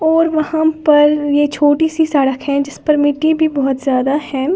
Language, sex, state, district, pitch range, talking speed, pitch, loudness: Hindi, female, Uttar Pradesh, Lalitpur, 280-315 Hz, 195 wpm, 295 Hz, -14 LUFS